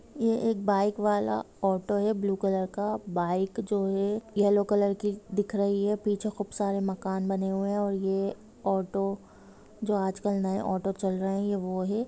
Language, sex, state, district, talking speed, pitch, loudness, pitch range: Hindi, female, Jharkhand, Jamtara, 170 wpm, 200 Hz, -29 LUFS, 195-205 Hz